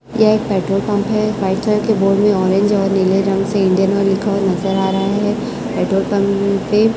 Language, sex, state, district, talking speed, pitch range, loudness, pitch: Hindi, male, Chhattisgarh, Raipur, 225 wpm, 195-210 Hz, -16 LUFS, 200 Hz